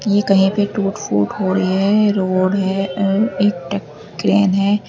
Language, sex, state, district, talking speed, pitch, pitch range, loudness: Hindi, female, Uttar Pradesh, Lalitpur, 170 wpm, 195 Hz, 190-205 Hz, -17 LUFS